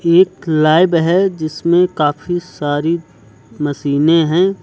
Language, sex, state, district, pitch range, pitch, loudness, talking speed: Hindi, male, Uttar Pradesh, Lucknow, 150-175 Hz, 165 Hz, -15 LUFS, 105 wpm